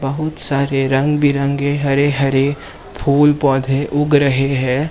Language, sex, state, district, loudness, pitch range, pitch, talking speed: Hindi, male, Maharashtra, Mumbai Suburban, -16 LUFS, 135-145 Hz, 140 Hz, 135 wpm